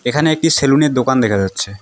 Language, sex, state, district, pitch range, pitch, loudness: Bengali, female, West Bengal, Alipurduar, 100-150 Hz, 130 Hz, -14 LUFS